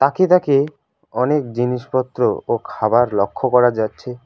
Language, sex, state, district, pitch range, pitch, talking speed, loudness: Bengali, male, West Bengal, Alipurduar, 120-140 Hz, 125 Hz, 125 wpm, -18 LUFS